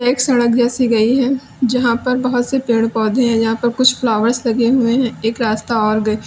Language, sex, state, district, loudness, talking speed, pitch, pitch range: Hindi, female, Uttar Pradesh, Lalitpur, -15 LUFS, 220 wpm, 240 Hz, 225-250 Hz